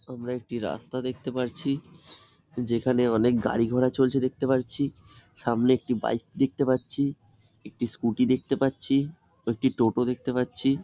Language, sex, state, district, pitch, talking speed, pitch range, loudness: Bengali, male, West Bengal, Jalpaiguri, 125 Hz, 145 wpm, 115-135 Hz, -27 LUFS